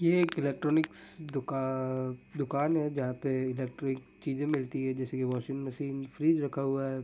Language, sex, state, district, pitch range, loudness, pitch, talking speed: Hindi, male, Jharkhand, Sahebganj, 130-150 Hz, -32 LUFS, 135 Hz, 160 wpm